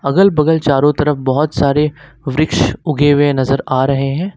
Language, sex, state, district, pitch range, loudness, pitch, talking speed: Hindi, male, Uttar Pradesh, Lucknow, 135-150 Hz, -14 LUFS, 145 Hz, 180 wpm